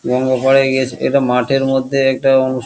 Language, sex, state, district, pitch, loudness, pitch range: Bengali, male, West Bengal, Kolkata, 135 Hz, -14 LUFS, 130-135 Hz